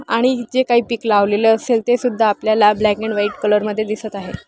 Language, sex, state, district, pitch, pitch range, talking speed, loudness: Marathi, female, Maharashtra, Pune, 220 Hz, 210-235 Hz, 185 wpm, -17 LUFS